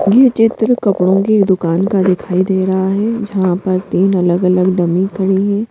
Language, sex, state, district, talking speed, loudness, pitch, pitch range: Hindi, female, Madhya Pradesh, Bhopal, 180 wpm, -13 LUFS, 190 Hz, 185-205 Hz